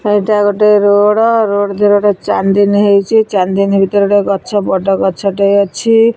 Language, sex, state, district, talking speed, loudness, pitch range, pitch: Odia, female, Odisha, Khordha, 155 wpm, -11 LUFS, 200-210 Hz, 205 Hz